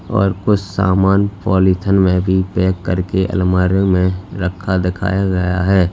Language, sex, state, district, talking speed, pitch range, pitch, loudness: Hindi, male, Uttar Pradesh, Lalitpur, 140 wpm, 90-95 Hz, 95 Hz, -16 LUFS